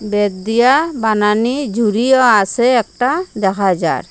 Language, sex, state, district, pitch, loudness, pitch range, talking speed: Bengali, female, Assam, Hailakandi, 225 Hz, -14 LUFS, 205-255 Hz, 115 wpm